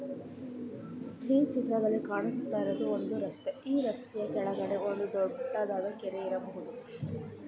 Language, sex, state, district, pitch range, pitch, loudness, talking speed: Kannada, female, Karnataka, Chamarajanagar, 200-260 Hz, 235 Hz, -34 LUFS, 105 wpm